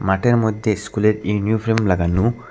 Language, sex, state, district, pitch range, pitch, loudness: Bengali, male, Assam, Hailakandi, 100-110 Hz, 105 Hz, -19 LUFS